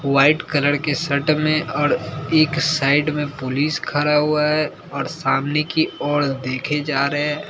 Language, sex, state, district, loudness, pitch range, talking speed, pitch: Hindi, male, Bihar, Katihar, -19 LUFS, 145-155 Hz, 160 wpm, 150 Hz